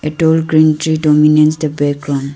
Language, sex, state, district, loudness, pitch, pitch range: English, female, Arunachal Pradesh, Lower Dibang Valley, -12 LUFS, 155 Hz, 145-155 Hz